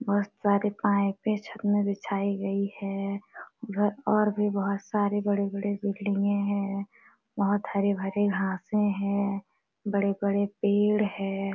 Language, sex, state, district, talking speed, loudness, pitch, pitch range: Hindi, female, Jharkhand, Sahebganj, 150 wpm, -28 LUFS, 200 Hz, 200-205 Hz